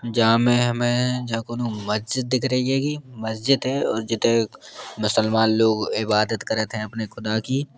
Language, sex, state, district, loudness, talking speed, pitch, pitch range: Bundeli, male, Uttar Pradesh, Jalaun, -22 LUFS, 155 wpm, 115 Hz, 110-125 Hz